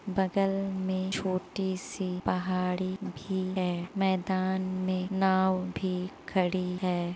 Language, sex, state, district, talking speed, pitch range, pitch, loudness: Hindi, female, Uttar Pradesh, Muzaffarnagar, 110 wpm, 185-190 Hz, 185 Hz, -30 LUFS